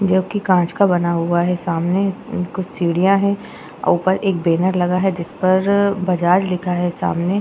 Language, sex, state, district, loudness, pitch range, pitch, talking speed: Hindi, female, Uttar Pradesh, Jyotiba Phule Nagar, -18 LUFS, 175-195 Hz, 185 Hz, 185 wpm